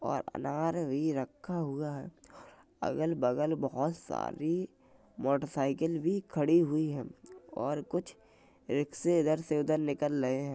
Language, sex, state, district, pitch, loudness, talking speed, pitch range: Hindi, male, Uttar Pradesh, Jalaun, 150 Hz, -33 LUFS, 135 wpm, 140-165 Hz